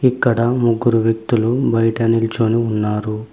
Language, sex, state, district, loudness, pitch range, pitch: Telugu, male, Telangana, Mahabubabad, -17 LUFS, 110-120 Hz, 115 Hz